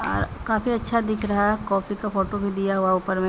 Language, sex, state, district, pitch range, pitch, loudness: Maithili, female, Bihar, Samastipur, 195-215 Hz, 205 Hz, -24 LUFS